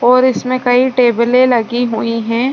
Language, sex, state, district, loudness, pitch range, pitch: Hindi, female, Bihar, Saran, -13 LUFS, 235-255 Hz, 245 Hz